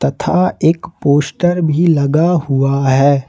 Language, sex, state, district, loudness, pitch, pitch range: Hindi, male, Jharkhand, Ranchi, -14 LUFS, 145 Hz, 140-170 Hz